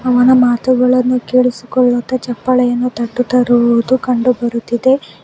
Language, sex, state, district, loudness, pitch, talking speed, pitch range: Kannada, female, Karnataka, Bangalore, -13 LUFS, 250 Hz, 80 wpm, 240-255 Hz